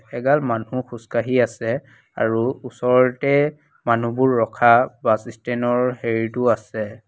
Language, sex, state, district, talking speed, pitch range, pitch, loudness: Assamese, female, Assam, Kamrup Metropolitan, 110 wpm, 115-125 Hz, 120 Hz, -20 LUFS